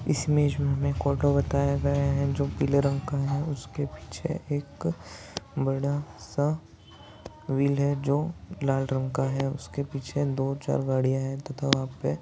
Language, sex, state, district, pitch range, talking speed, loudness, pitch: Hindi, male, Rajasthan, Churu, 135-140 Hz, 145 wpm, -28 LUFS, 140 Hz